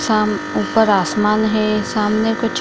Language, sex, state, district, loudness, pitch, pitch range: Hindi, female, Bihar, Kishanganj, -17 LUFS, 215 Hz, 210-220 Hz